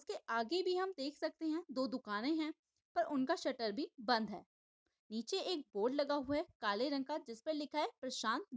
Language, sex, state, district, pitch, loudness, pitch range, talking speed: Hindi, female, Maharashtra, Aurangabad, 285 Hz, -40 LUFS, 235-315 Hz, 205 wpm